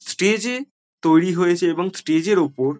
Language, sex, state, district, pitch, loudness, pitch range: Bengali, male, West Bengal, Jhargram, 180 Hz, -19 LUFS, 165-220 Hz